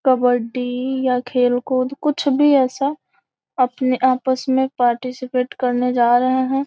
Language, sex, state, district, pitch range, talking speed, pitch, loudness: Hindi, female, Bihar, Gopalganj, 250-265 Hz, 135 wpm, 255 Hz, -18 LUFS